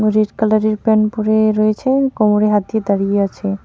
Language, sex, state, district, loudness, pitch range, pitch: Bengali, female, West Bengal, Alipurduar, -15 LUFS, 210-215 Hz, 215 Hz